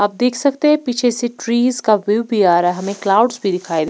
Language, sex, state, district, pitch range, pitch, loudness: Hindi, female, Punjab, Pathankot, 195-245 Hz, 230 Hz, -16 LUFS